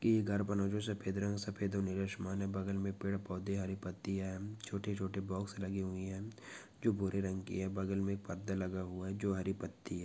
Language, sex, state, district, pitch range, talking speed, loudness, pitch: Hindi, male, Goa, North and South Goa, 95-100 Hz, 225 wpm, -39 LUFS, 95 Hz